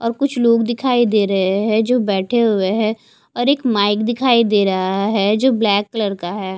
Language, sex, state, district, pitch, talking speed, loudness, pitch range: Hindi, female, Haryana, Charkhi Dadri, 220 Hz, 200 wpm, -16 LUFS, 200-235 Hz